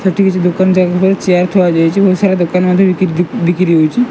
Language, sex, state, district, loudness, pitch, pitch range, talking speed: Odia, male, Odisha, Malkangiri, -11 LUFS, 185 Hz, 175-190 Hz, 235 wpm